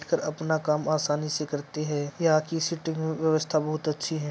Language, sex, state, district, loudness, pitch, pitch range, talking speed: Hindi, male, Uttar Pradesh, Etah, -27 LUFS, 155 Hz, 150-160 Hz, 180 wpm